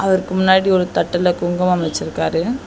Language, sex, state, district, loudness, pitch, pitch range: Tamil, female, Tamil Nadu, Chennai, -17 LUFS, 180 Hz, 175-190 Hz